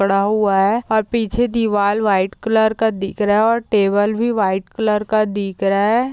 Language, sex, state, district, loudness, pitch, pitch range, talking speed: Hindi, female, Uttar Pradesh, Jyotiba Phule Nagar, -17 LUFS, 210 Hz, 200-225 Hz, 195 wpm